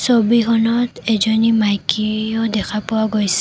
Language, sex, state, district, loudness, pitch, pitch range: Assamese, female, Assam, Kamrup Metropolitan, -17 LUFS, 220 Hz, 215-230 Hz